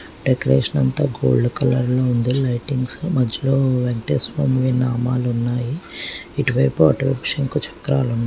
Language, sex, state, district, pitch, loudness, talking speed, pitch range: Telugu, female, Telangana, Karimnagar, 130 Hz, -19 LUFS, 130 wpm, 120-135 Hz